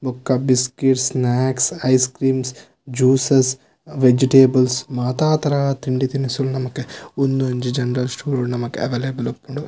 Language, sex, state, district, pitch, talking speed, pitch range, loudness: Tulu, male, Karnataka, Dakshina Kannada, 130 Hz, 120 wpm, 125-135 Hz, -18 LUFS